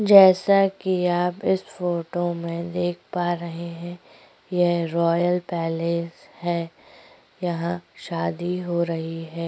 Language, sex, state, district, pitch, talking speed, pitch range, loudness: Hindi, female, Chhattisgarh, Korba, 175 Hz, 120 wpm, 170-180 Hz, -23 LUFS